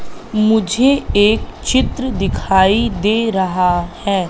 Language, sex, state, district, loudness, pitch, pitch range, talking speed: Hindi, female, Madhya Pradesh, Katni, -15 LUFS, 210 Hz, 190-225 Hz, 95 wpm